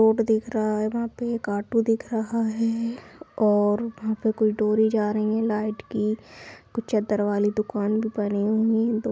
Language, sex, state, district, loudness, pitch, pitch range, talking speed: Angika, female, Bihar, Supaul, -24 LUFS, 220 Hz, 210-225 Hz, 185 wpm